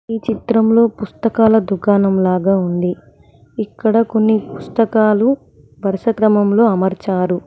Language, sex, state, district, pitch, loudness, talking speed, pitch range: Telugu, female, Telangana, Mahabubabad, 215 Hz, -15 LUFS, 80 wpm, 190-225 Hz